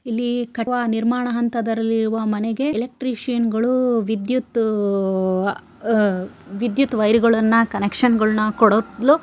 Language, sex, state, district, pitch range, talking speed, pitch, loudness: Kannada, female, Karnataka, Shimoga, 215-240 Hz, 90 wpm, 230 Hz, -20 LUFS